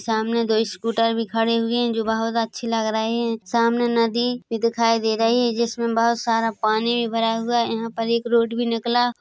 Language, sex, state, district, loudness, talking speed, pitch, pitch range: Hindi, female, Chhattisgarh, Bilaspur, -21 LUFS, 230 wpm, 230 Hz, 225-235 Hz